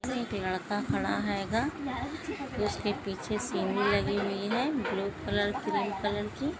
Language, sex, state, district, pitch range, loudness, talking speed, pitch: Hindi, female, Goa, North and South Goa, 200-250 Hz, -31 LUFS, 125 wpm, 205 Hz